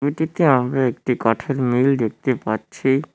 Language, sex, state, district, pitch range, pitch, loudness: Bengali, male, West Bengal, Cooch Behar, 120-140 Hz, 130 Hz, -20 LUFS